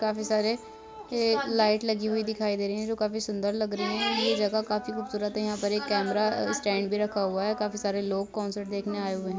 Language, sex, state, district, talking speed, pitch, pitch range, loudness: Hindi, female, Bihar, Vaishali, 245 wpm, 210 Hz, 205-220 Hz, -28 LUFS